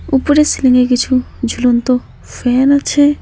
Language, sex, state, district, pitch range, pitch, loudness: Bengali, female, West Bengal, Alipurduar, 250-285 Hz, 255 Hz, -13 LUFS